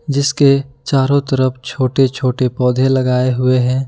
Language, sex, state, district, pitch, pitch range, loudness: Hindi, male, Jharkhand, Ranchi, 130 Hz, 125-140 Hz, -15 LUFS